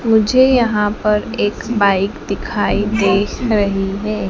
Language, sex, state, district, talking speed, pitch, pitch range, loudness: Hindi, female, Madhya Pradesh, Dhar, 125 wpm, 210 Hz, 200-220 Hz, -16 LUFS